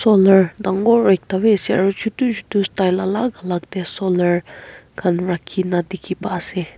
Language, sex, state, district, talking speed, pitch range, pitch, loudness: Nagamese, female, Nagaland, Kohima, 170 wpm, 180-205 Hz, 190 Hz, -18 LUFS